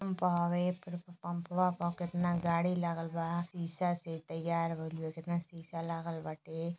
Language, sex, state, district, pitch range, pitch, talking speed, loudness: Hindi, female, Uttar Pradesh, Gorakhpur, 165-175 Hz, 170 Hz, 160 wpm, -36 LUFS